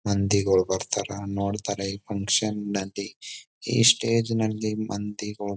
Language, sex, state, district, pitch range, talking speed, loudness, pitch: Kannada, male, Karnataka, Bijapur, 100-110 Hz, 120 wpm, -25 LUFS, 100 Hz